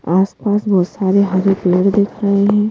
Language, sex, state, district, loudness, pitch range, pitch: Hindi, female, Madhya Pradesh, Bhopal, -15 LUFS, 190-205 Hz, 195 Hz